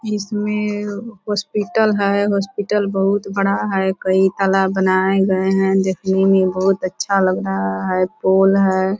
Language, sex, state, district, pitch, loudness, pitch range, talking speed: Hindi, female, Bihar, Purnia, 195 Hz, -17 LUFS, 190-205 Hz, 175 wpm